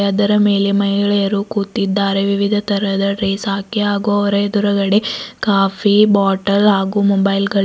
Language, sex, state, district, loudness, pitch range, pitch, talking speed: Kannada, female, Karnataka, Bidar, -15 LUFS, 195-205 Hz, 200 Hz, 135 wpm